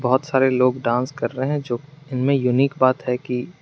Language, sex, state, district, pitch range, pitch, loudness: Hindi, male, Jharkhand, Garhwa, 125-140 Hz, 130 Hz, -21 LUFS